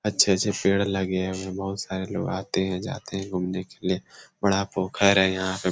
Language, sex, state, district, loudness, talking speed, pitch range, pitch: Hindi, male, Jharkhand, Sahebganj, -25 LUFS, 220 wpm, 95-100 Hz, 95 Hz